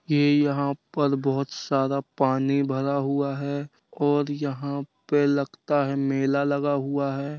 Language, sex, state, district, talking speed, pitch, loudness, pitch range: Bundeli, male, Uttar Pradesh, Jalaun, 145 wpm, 140 Hz, -25 LUFS, 140-145 Hz